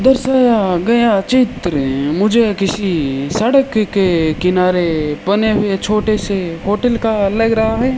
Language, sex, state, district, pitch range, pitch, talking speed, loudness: Hindi, male, Rajasthan, Bikaner, 180-225 Hz, 205 Hz, 130 wpm, -15 LUFS